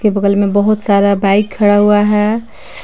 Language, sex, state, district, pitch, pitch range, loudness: Hindi, female, Jharkhand, Palamu, 205 Hz, 200-210 Hz, -12 LUFS